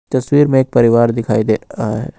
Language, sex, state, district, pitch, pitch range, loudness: Hindi, male, Jharkhand, Ranchi, 120 Hz, 115-130 Hz, -14 LUFS